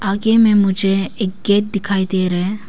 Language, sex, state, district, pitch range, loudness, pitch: Hindi, female, Arunachal Pradesh, Papum Pare, 195-205 Hz, -15 LUFS, 200 Hz